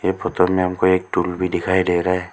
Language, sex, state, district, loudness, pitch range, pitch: Hindi, male, Arunachal Pradesh, Lower Dibang Valley, -19 LUFS, 90-95 Hz, 90 Hz